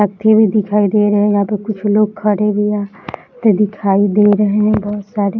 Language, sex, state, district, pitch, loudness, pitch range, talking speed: Hindi, female, Bihar, Samastipur, 210 Hz, -14 LUFS, 205-210 Hz, 220 wpm